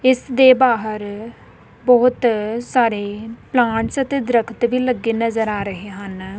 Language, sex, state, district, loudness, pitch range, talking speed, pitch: Punjabi, female, Punjab, Kapurthala, -18 LUFS, 215-250 Hz, 130 wpm, 230 Hz